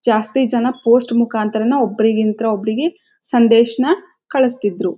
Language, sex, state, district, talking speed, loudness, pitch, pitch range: Kannada, female, Karnataka, Dharwad, 120 wpm, -16 LUFS, 235 Hz, 220-265 Hz